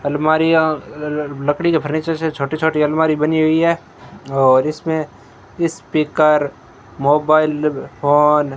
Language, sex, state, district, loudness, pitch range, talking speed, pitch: Hindi, male, Rajasthan, Bikaner, -17 LUFS, 145-160 Hz, 120 wpm, 150 Hz